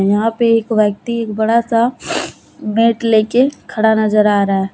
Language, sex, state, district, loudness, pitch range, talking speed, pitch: Hindi, female, Jharkhand, Deoghar, -15 LUFS, 210-230 Hz, 165 wpm, 220 Hz